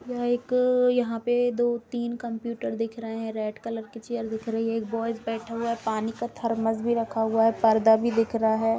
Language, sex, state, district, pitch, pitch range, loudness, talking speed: Hindi, female, Bihar, Gopalganj, 230 Hz, 225-235 Hz, -26 LUFS, 225 wpm